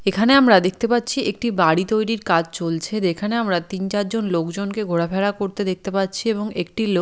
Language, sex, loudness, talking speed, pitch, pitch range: Bengali, female, -20 LUFS, 190 wpm, 200 Hz, 180-220 Hz